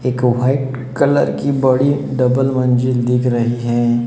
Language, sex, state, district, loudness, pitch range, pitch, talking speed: Hindi, male, Maharashtra, Gondia, -16 LUFS, 120-135 Hz, 125 Hz, 145 wpm